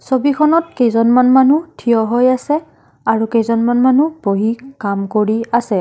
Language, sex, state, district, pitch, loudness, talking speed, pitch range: Assamese, female, Assam, Kamrup Metropolitan, 240 Hz, -14 LUFS, 135 wpm, 225-270 Hz